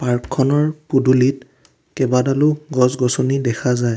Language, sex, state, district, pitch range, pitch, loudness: Assamese, male, Assam, Kamrup Metropolitan, 125-135 Hz, 130 Hz, -17 LUFS